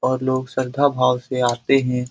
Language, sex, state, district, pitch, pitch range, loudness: Hindi, male, Bihar, Jamui, 130 Hz, 125-130 Hz, -20 LUFS